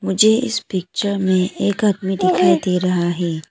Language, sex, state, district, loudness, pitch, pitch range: Hindi, female, Arunachal Pradesh, Papum Pare, -18 LUFS, 185 Hz, 180-200 Hz